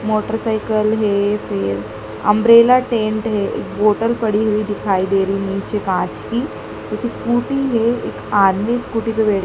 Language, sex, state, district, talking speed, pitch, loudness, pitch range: Hindi, female, Madhya Pradesh, Dhar, 140 wpm, 215 Hz, -17 LUFS, 200-225 Hz